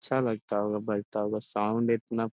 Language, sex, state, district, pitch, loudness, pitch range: Hindi, male, Bihar, Jamui, 110 Hz, -30 LUFS, 105-115 Hz